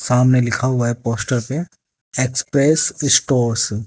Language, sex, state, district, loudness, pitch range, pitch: Hindi, male, Haryana, Jhajjar, -17 LUFS, 120-140 Hz, 125 Hz